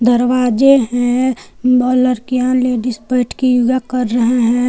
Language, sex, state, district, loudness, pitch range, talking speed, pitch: Hindi, female, Jharkhand, Palamu, -14 LUFS, 245-255 Hz, 155 wpm, 250 Hz